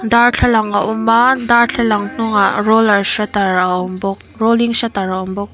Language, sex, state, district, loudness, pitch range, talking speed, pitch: Mizo, female, Mizoram, Aizawl, -14 LUFS, 195-235 Hz, 175 wpm, 215 Hz